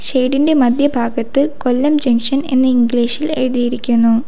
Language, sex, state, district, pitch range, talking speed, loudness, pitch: Malayalam, female, Kerala, Kollam, 240-280 Hz, 125 wpm, -14 LUFS, 255 Hz